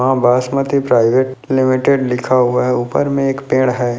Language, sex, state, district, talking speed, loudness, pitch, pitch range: Hindi, male, Bihar, Jahanabad, 180 wpm, -15 LUFS, 130 Hz, 125-135 Hz